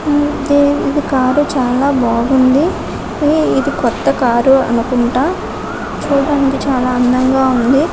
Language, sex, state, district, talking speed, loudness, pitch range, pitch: Telugu, female, Telangana, Karimnagar, 90 wpm, -14 LUFS, 250-290 Hz, 270 Hz